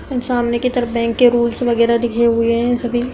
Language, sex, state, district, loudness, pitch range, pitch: Hindi, female, Uttar Pradesh, Hamirpur, -16 LUFS, 235-245 Hz, 240 Hz